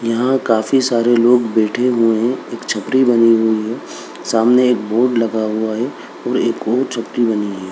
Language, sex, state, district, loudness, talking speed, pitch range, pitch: Hindi, male, Bihar, Begusarai, -16 LUFS, 195 wpm, 110-125 Hz, 115 Hz